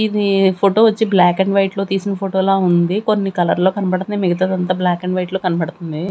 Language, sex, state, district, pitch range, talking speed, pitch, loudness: Telugu, female, Andhra Pradesh, Manyam, 180-195 Hz, 205 wpm, 190 Hz, -16 LUFS